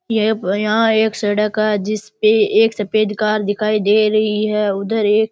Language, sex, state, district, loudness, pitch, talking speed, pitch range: Rajasthani, male, Rajasthan, Churu, -16 LUFS, 215 Hz, 180 wpm, 210-215 Hz